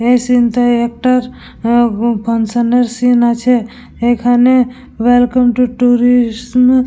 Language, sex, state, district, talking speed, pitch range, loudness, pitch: Bengali, female, West Bengal, Purulia, 115 wpm, 235-250 Hz, -12 LUFS, 245 Hz